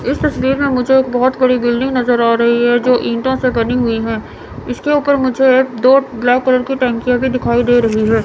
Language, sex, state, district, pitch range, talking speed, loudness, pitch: Hindi, female, Chandigarh, Chandigarh, 235-260 Hz, 225 wpm, -14 LUFS, 250 Hz